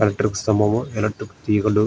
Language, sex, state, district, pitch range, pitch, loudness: Telugu, male, Andhra Pradesh, Srikakulam, 105-110 Hz, 105 Hz, -21 LUFS